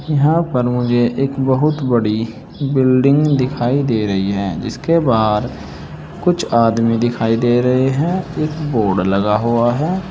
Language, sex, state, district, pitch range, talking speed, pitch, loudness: Hindi, male, Uttar Pradesh, Saharanpur, 115-150 Hz, 140 wpm, 125 Hz, -16 LUFS